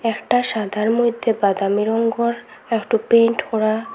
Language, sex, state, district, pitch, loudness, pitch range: Bengali, female, Assam, Hailakandi, 230 Hz, -19 LUFS, 215-235 Hz